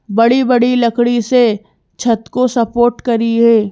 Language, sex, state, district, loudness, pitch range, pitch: Hindi, female, Madhya Pradesh, Bhopal, -13 LUFS, 230-245 Hz, 235 Hz